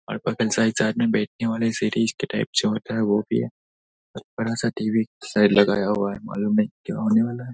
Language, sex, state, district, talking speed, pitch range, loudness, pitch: Hindi, male, Bihar, Darbhanga, 190 wpm, 105-120 Hz, -23 LUFS, 110 Hz